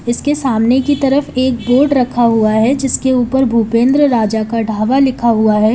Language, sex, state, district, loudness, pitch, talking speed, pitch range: Hindi, female, Uttar Pradesh, Lalitpur, -13 LUFS, 245 Hz, 190 wpm, 225-265 Hz